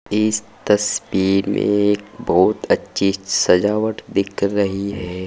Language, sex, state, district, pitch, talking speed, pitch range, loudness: Hindi, male, Uttar Pradesh, Saharanpur, 100 Hz, 115 wpm, 95-105 Hz, -18 LUFS